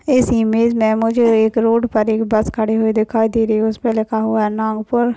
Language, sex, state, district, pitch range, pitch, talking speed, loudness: Hindi, male, Maharashtra, Nagpur, 220-230 Hz, 220 Hz, 220 wpm, -16 LUFS